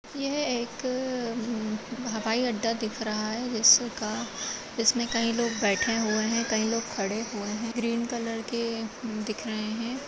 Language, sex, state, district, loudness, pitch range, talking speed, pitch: Hindi, female, Uttar Pradesh, Budaun, -28 LUFS, 220-240 Hz, 160 wpm, 230 Hz